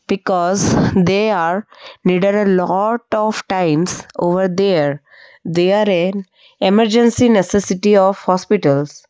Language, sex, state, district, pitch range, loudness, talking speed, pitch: English, female, Odisha, Malkangiri, 180-205 Hz, -15 LUFS, 105 wpm, 190 Hz